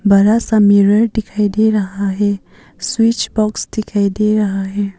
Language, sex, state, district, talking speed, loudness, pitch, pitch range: Hindi, female, Arunachal Pradesh, Papum Pare, 155 wpm, -15 LUFS, 210 Hz, 200-215 Hz